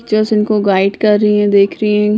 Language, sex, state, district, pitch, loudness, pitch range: Hindi, female, Bihar, Sitamarhi, 210 Hz, -12 LUFS, 205-215 Hz